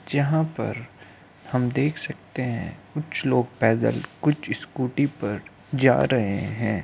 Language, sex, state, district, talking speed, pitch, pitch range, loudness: Hindi, male, Uttar Pradesh, Hamirpur, 130 wpm, 125 Hz, 110-140 Hz, -25 LUFS